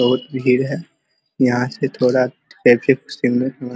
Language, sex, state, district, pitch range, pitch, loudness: Hindi, male, Bihar, Vaishali, 125-135 Hz, 125 Hz, -18 LUFS